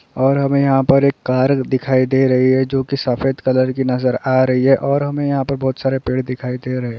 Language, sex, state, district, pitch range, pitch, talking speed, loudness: Hindi, male, Chhattisgarh, Bastar, 130-135 Hz, 130 Hz, 250 wpm, -16 LUFS